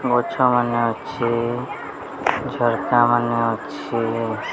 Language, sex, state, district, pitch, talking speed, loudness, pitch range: Odia, female, Odisha, Sambalpur, 120 Hz, 80 wpm, -21 LUFS, 115-120 Hz